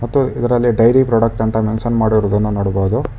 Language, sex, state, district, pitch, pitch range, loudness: Kannada, male, Karnataka, Bangalore, 115 Hz, 110-120 Hz, -15 LUFS